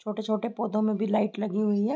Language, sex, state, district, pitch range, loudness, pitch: Hindi, female, Bihar, East Champaran, 210-215 Hz, -27 LUFS, 215 Hz